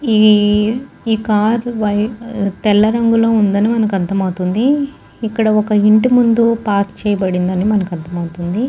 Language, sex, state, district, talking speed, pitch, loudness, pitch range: Telugu, female, Andhra Pradesh, Guntur, 145 wpm, 215 Hz, -15 LUFS, 200-230 Hz